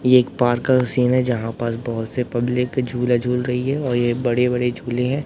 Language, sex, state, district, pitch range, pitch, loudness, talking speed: Hindi, male, Madhya Pradesh, Katni, 120-125 Hz, 125 Hz, -20 LUFS, 230 wpm